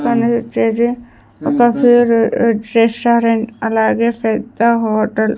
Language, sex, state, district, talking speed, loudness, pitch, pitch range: Telugu, female, Andhra Pradesh, Sri Satya Sai, 90 wpm, -14 LUFS, 235 Hz, 225-240 Hz